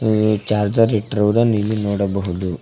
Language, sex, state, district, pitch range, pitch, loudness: Kannada, male, Karnataka, Koppal, 100-110 Hz, 105 Hz, -18 LUFS